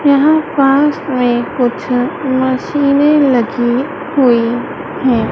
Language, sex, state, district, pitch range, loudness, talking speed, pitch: Hindi, female, Madhya Pradesh, Dhar, 245-290 Hz, -13 LUFS, 90 wpm, 265 Hz